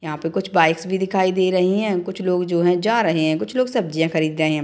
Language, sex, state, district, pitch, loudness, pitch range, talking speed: Hindi, female, Bihar, Madhepura, 180 Hz, -20 LUFS, 160-190 Hz, 285 wpm